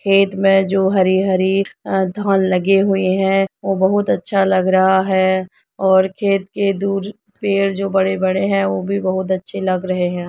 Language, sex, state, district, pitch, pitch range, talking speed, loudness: Hindi, female, Uttar Pradesh, Jyotiba Phule Nagar, 190 Hz, 190-195 Hz, 185 wpm, -17 LUFS